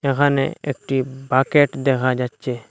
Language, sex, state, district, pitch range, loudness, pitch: Bengali, male, Assam, Hailakandi, 130-140 Hz, -20 LUFS, 135 Hz